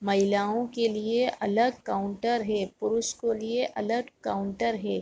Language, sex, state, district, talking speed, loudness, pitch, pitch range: Hindi, female, Chhattisgarh, Raigarh, 145 wpm, -28 LUFS, 225 Hz, 200-235 Hz